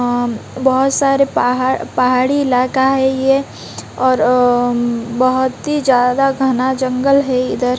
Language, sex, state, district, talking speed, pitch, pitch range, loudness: Hindi, female, Odisha, Malkangiri, 145 wpm, 260 Hz, 250-270 Hz, -15 LUFS